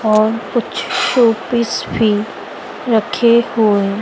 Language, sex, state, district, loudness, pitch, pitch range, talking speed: Hindi, female, Madhya Pradesh, Dhar, -15 LUFS, 225 Hz, 215-235 Hz, 105 wpm